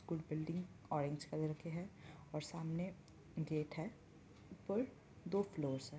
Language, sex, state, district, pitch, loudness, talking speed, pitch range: Hindi, female, Uttar Pradesh, Muzaffarnagar, 160 Hz, -44 LUFS, 140 wpm, 150-175 Hz